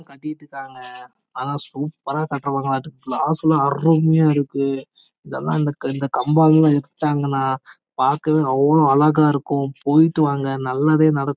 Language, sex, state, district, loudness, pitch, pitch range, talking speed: Tamil, male, Karnataka, Chamarajanagar, -19 LUFS, 145 Hz, 135-155 Hz, 45 wpm